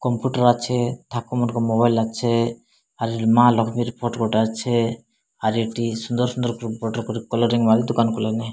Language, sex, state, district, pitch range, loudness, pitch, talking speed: Odia, male, Odisha, Malkangiri, 115-120 Hz, -21 LUFS, 115 Hz, 140 wpm